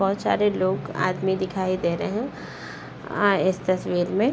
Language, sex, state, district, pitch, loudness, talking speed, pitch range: Hindi, female, Uttar Pradesh, Gorakhpur, 190 Hz, -24 LUFS, 150 wpm, 185-195 Hz